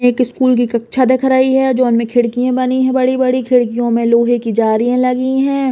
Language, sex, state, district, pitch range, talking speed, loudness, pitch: Bundeli, female, Uttar Pradesh, Hamirpur, 240-260 Hz, 200 wpm, -14 LUFS, 250 Hz